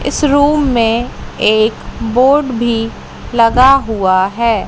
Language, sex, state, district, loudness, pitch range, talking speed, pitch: Hindi, female, Madhya Pradesh, Katni, -12 LUFS, 225-265 Hz, 115 wpm, 235 Hz